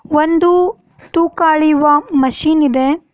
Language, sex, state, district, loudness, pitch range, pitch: Kannada, female, Karnataka, Bidar, -13 LUFS, 295-335 Hz, 310 Hz